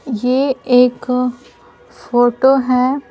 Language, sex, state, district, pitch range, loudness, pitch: Hindi, female, Bihar, Patna, 245-260 Hz, -15 LUFS, 250 Hz